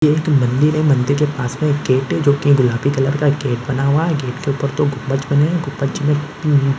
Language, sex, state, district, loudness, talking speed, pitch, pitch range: Hindi, male, Chhattisgarh, Rajnandgaon, -17 LUFS, 285 wpm, 140 Hz, 135-150 Hz